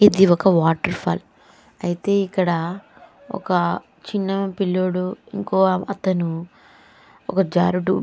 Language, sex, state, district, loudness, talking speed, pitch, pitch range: Telugu, female, Andhra Pradesh, Chittoor, -21 LUFS, 90 wpm, 190 Hz, 180-195 Hz